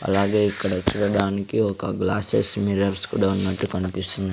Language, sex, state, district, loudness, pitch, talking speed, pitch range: Telugu, male, Andhra Pradesh, Sri Satya Sai, -23 LUFS, 100 Hz, 125 wpm, 95-100 Hz